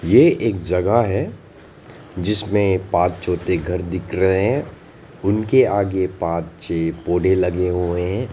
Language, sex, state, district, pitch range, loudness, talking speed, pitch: Hindi, male, Arunachal Pradesh, Lower Dibang Valley, 90-100 Hz, -19 LUFS, 135 wpm, 90 Hz